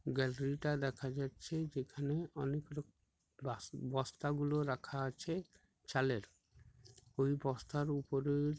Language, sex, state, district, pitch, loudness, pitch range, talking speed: Bengali, male, West Bengal, Purulia, 140 Hz, -40 LUFS, 130-145 Hz, 105 wpm